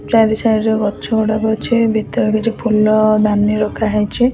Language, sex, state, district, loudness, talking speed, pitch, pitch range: Odia, female, Odisha, Khordha, -15 LUFS, 165 wpm, 220 Hz, 215-225 Hz